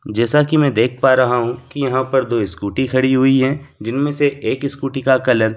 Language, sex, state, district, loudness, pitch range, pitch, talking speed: Hindi, male, Delhi, New Delhi, -17 LUFS, 120-140 Hz, 130 Hz, 235 wpm